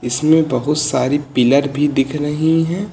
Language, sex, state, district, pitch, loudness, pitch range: Hindi, male, Uttar Pradesh, Lucknow, 150 Hz, -16 LUFS, 135-155 Hz